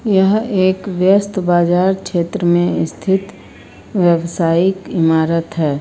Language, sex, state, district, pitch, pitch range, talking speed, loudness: Hindi, female, Uttar Pradesh, Lucknow, 180 Hz, 170-190 Hz, 105 wpm, -15 LUFS